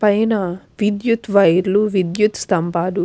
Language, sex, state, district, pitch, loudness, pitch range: Telugu, female, Andhra Pradesh, Krishna, 200 Hz, -17 LUFS, 180-210 Hz